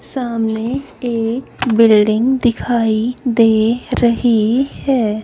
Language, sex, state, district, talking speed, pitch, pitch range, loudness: Hindi, female, Haryana, Charkhi Dadri, 80 wpm, 235 Hz, 225-245 Hz, -15 LUFS